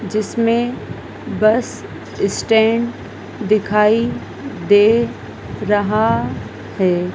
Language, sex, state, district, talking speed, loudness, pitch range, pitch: Hindi, female, Madhya Pradesh, Dhar, 60 wpm, -17 LUFS, 205-225 Hz, 215 Hz